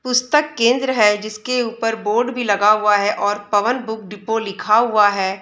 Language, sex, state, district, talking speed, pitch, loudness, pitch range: Hindi, female, Uttar Pradesh, Budaun, 190 wpm, 215 Hz, -17 LUFS, 205-240 Hz